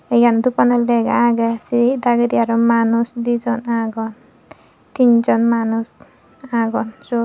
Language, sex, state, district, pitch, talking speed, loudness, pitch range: Chakma, female, Tripura, Dhalai, 235 Hz, 140 wpm, -17 LUFS, 230-240 Hz